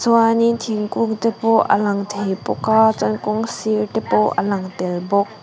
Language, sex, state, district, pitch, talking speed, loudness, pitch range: Mizo, female, Mizoram, Aizawl, 215 Hz, 165 wpm, -18 LUFS, 200-225 Hz